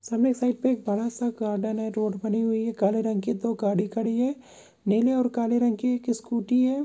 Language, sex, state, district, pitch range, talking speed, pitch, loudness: Hindi, female, Goa, North and South Goa, 220-245 Hz, 235 wpm, 230 Hz, -26 LUFS